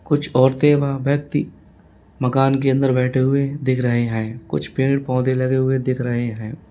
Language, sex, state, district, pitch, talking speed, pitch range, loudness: Hindi, male, Uttar Pradesh, Lalitpur, 130 Hz, 180 wpm, 120-135 Hz, -19 LUFS